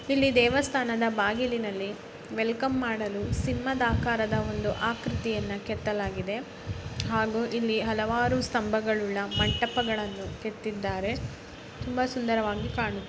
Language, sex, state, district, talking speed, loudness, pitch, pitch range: Kannada, male, Karnataka, Bellary, 70 wpm, -28 LUFS, 230 Hz, 215-245 Hz